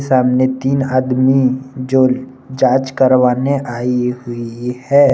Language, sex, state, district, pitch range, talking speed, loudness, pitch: Hindi, male, Jharkhand, Palamu, 125-130 Hz, 105 wpm, -15 LUFS, 130 Hz